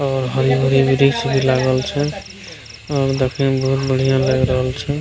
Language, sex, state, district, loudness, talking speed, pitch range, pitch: Maithili, male, Bihar, Begusarai, -17 LUFS, 165 wpm, 130-135 Hz, 135 Hz